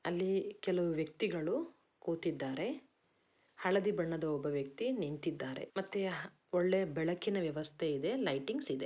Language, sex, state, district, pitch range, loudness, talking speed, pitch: Kannada, female, Karnataka, Dakshina Kannada, 155-190 Hz, -37 LUFS, 110 wpm, 170 Hz